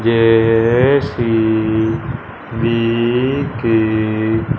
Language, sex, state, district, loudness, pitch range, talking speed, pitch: Hindi, male, Punjab, Fazilka, -15 LUFS, 110-120 Hz, 40 wpm, 115 Hz